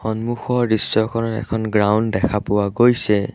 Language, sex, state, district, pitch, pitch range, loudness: Assamese, male, Assam, Sonitpur, 110 Hz, 105-115 Hz, -19 LUFS